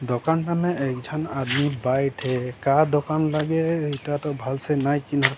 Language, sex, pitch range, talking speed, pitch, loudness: Sadri, male, 135-155 Hz, 165 wpm, 145 Hz, -24 LUFS